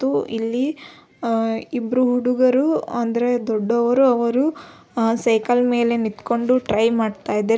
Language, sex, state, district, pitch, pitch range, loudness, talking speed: Kannada, female, Karnataka, Belgaum, 235 Hz, 225-255 Hz, -20 LUFS, 105 wpm